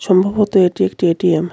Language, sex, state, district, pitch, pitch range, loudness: Bengali, male, West Bengal, Cooch Behar, 185 Hz, 175-195 Hz, -15 LUFS